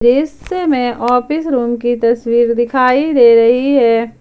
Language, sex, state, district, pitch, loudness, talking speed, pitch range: Hindi, female, Jharkhand, Ranchi, 245 Hz, -13 LUFS, 140 wpm, 235-270 Hz